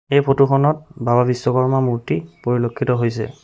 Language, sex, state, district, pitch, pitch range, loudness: Assamese, male, Assam, Sonitpur, 130 Hz, 120-140 Hz, -18 LUFS